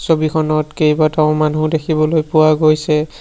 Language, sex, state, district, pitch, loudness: Assamese, male, Assam, Sonitpur, 155 Hz, -14 LUFS